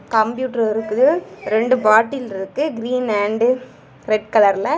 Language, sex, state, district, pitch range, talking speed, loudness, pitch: Tamil, female, Tamil Nadu, Kanyakumari, 215-255 Hz, 125 wpm, -18 LUFS, 225 Hz